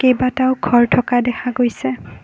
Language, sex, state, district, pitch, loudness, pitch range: Assamese, female, Assam, Kamrup Metropolitan, 245 Hz, -17 LUFS, 230-255 Hz